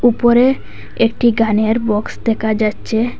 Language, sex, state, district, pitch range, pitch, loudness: Bengali, female, Assam, Hailakandi, 220-240 Hz, 225 Hz, -15 LUFS